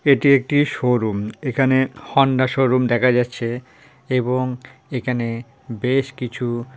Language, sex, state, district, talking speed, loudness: Bengali, female, West Bengal, Jhargram, 115 wpm, -20 LUFS